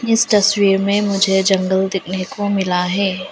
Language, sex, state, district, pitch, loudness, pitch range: Hindi, female, Arunachal Pradesh, Lower Dibang Valley, 195 Hz, -16 LUFS, 190-205 Hz